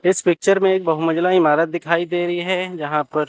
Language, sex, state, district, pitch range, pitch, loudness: Hindi, male, Chandigarh, Chandigarh, 165-185 Hz, 175 Hz, -18 LUFS